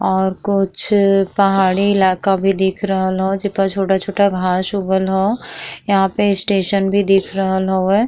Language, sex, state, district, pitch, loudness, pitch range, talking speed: Bhojpuri, female, Bihar, East Champaran, 195 Hz, -16 LUFS, 190-200 Hz, 165 wpm